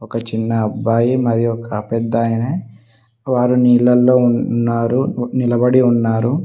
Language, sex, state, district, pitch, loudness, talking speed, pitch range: Telugu, male, Telangana, Mahabubabad, 115 Hz, -16 LUFS, 100 wpm, 115-125 Hz